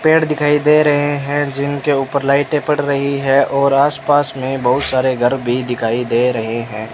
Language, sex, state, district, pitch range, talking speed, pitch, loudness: Hindi, male, Rajasthan, Bikaner, 125-145 Hz, 190 wpm, 140 Hz, -15 LUFS